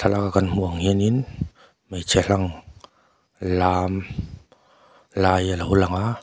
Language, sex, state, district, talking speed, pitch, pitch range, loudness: Mizo, male, Mizoram, Aizawl, 115 wpm, 95 Hz, 90-100 Hz, -22 LUFS